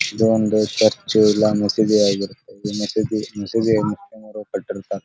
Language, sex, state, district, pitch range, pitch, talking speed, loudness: Kannada, male, Karnataka, Belgaum, 105-110 Hz, 105 Hz, 120 wpm, -19 LUFS